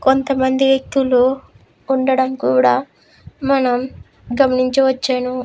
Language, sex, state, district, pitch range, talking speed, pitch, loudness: Telugu, female, Andhra Pradesh, Krishna, 255-270 Hz, 90 wpm, 260 Hz, -16 LUFS